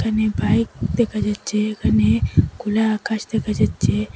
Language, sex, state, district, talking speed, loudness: Bengali, female, Assam, Hailakandi, 130 wpm, -20 LUFS